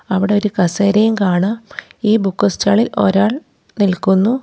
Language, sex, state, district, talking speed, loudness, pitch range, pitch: Malayalam, female, Kerala, Kollam, 135 wpm, -15 LUFS, 190-220 Hz, 205 Hz